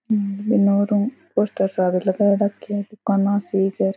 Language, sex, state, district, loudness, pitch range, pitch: Rajasthani, female, Rajasthan, Churu, -20 LUFS, 195-210 Hz, 205 Hz